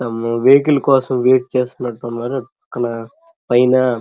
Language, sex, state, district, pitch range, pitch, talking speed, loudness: Telugu, male, Andhra Pradesh, Krishna, 120-135 Hz, 125 Hz, 120 wpm, -16 LUFS